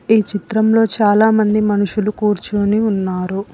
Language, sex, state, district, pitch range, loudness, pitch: Telugu, female, Telangana, Hyderabad, 205-220 Hz, -15 LUFS, 210 Hz